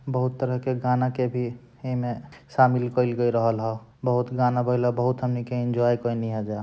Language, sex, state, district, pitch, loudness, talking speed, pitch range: Bhojpuri, male, Bihar, Gopalganj, 125 Hz, -25 LUFS, 200 wpm, 120-125 Hz